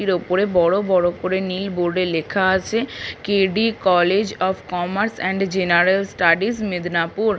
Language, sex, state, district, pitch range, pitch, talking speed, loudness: Bengali, female, West Bengal, Paschim Medinipur, 180-200 Hz, 190 Hz, 140 wpm, -19 LUFS